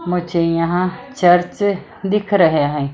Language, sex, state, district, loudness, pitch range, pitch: Hindi, female, Maharashtra, Mumbai Suburban, -17 LUFS, 165-200 Hz, 180 Hz